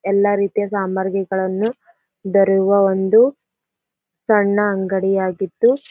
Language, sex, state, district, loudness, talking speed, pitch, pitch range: Kannada, female, Karnataka, Gulbarga, -17 LUFS, 70 wpm, 195 Hz, 190-205 Hz